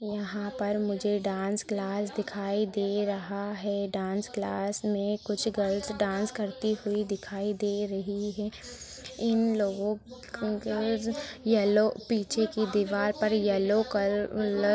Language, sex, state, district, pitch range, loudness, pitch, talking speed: Hindi, female, Chhattisgarh, Korba, 200-215 Hz, -30 LUFS, 205 Hz, 135 wpm